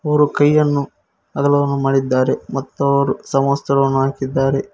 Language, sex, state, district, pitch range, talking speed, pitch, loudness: Kannada, male, Karnataka, Koppal, 135-145 Hz, 90 wpm, 140 Hz, -17 LUFS